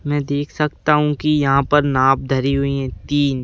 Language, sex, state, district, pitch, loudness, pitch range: Hindi, male, Madhya Pradesh, Bhopal, 140 Hz, -18 LUFS, 135-150 Hz